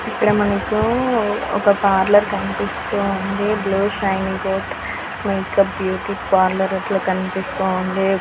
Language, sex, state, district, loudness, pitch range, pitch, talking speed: Telugu, female, Andhra Pradesh, Srikakulam, -19 LUFS, 190-205 Hz, 195 Hz, 100 wpm